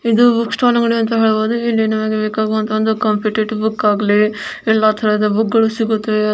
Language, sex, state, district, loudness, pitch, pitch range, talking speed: Kannada, male, Karnataka, Belgaum, -15 LUFS, 220 Hz, 215-225 Hz, 170 wpm